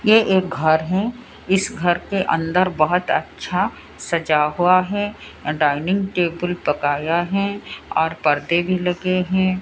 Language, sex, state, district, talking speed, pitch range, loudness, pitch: Hindi, female, Odisha, Sambalpur, 135 wpm, 160-190 Hz, -20 LUFS, 180 Hz